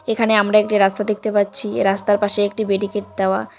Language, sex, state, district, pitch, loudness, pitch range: Bengali, female, West Bengal, Cooch Behar, 205 Hz, -18 LUFS, 200-215 Hz